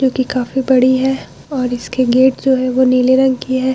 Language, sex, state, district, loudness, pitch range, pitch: Hindi, female, Bihar, Vaishali, -14 LUFS, 255-265 Hz, 260 Hz